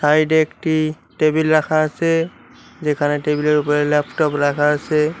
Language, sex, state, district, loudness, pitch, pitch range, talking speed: Bengali, male, West Bengal, Cooch Behar, -18 LUFS, 150 Hz, 150-155 Hz, 150 wpm